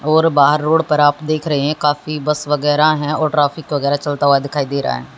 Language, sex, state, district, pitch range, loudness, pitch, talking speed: Hindi, female, Haryana, Jhajjar, 145-155 Hz, -16 LUFS, 150 Hz, 245 wpm